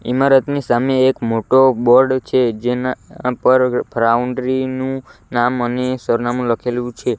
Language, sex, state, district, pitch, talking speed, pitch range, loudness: Gujarati, male, Gujarat, Valsad, 125 Hz, 125 wpm, 120-130 Hz, -16 LUFS